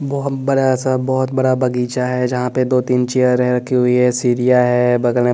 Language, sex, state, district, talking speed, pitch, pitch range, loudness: Hindi, male, Bihar, West Champaran, 225 wpm, 125 Hz, 125-130 Hz, -16 LUFS